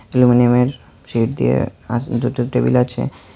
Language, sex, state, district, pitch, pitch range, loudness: Bengali, male, Tripura, Unakoti, 120 Hz, 120-125 Hz, -17 LUFS